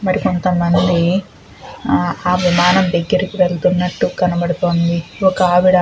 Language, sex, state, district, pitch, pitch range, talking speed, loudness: Telugu, female, Andhra Pradesh, Chittoor, 180 Hz, 175-185 Hz, 105 wpm, -15 LUFS